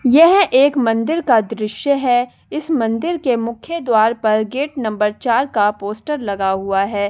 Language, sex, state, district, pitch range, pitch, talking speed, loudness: Hindi, female, Delhi, New Delhi, 215-280 Hz, 230 Hz, 175 wpm, -17 LUFS